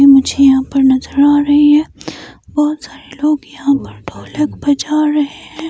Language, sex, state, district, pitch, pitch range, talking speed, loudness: Hindi, female, Himachal Pradesh, Shimla, 290 Hz, 275-300 Hz, 170 wpm, -13 LUFS